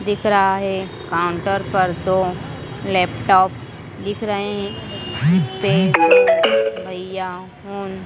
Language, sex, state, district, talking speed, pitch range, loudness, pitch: Hindi, female, Madhya Pradesh, Dhar, 105 wpm, 165-195 Hz, -18 LUFS, 185 Hz